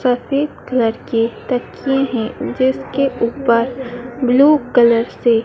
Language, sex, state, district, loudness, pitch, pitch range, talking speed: Hindi, female, Madhya Pradesh, Dhar, -16 LUFS, 245 Hz, 235-270 Hz, 110 wpm